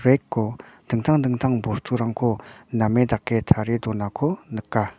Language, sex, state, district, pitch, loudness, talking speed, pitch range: Garo, male, Meghalaya, North Garo Hills, 115 Hz, -23 LUFS, 110 wpm, 110-125 Hz